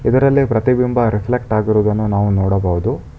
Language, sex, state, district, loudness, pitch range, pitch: Kannada, male, Karnataka, Bangalore, -16 LUFS, 100-125 Hz, 110 Hz